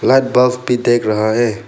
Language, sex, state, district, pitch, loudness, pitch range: Hindi, male, Arunachal Pradesh, Papum Pare, 120 Hz, -14 LUFS, 110-125 Hz